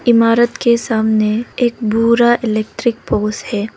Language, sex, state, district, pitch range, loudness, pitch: Hindi, female, Arunachal Pradesh, Lower Dibang Valley, 220-240 Hz, -15 LUFS, 230 Hz